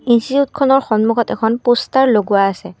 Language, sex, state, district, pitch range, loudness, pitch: Assamese, female, Assam, Kamrup Metropolitan, 220-265 Hz, -15 LUFS, 235 Hz